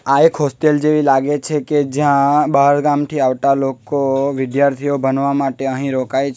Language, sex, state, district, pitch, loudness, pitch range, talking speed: Gujarati, male, Gujarat, Valsad, 140 Hz, -16 LUFS, 135-145 Hz, 170 wpm